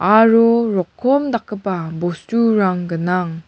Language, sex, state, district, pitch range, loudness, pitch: Garo, female, Meghalaya, West Garo Hills, 175-230 Hz, -17 LUFS, 195 Hz